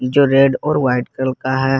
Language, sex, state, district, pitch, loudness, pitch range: Hindi, male, Jharkhand, Garhwa, 130 Hz, -16 LUFS, 130-135 Hz